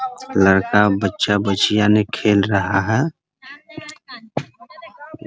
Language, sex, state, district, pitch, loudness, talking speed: Hindi, male, Bihar, Muzaffarpur, 105 Hz, -17 LUFS, 80 wpm